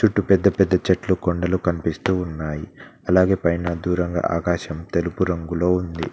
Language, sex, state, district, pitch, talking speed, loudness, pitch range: Telugu, male, Telangana, Mahabubabad, 90 Hz, 135 wpm, -21 LUFS, 85-95 Hz